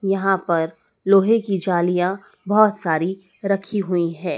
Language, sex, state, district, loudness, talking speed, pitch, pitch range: Hindi, male, Madhya Pradesh, Dhar, -20 LUFS, 135 wpm, 190 Hz, 175-200 Hz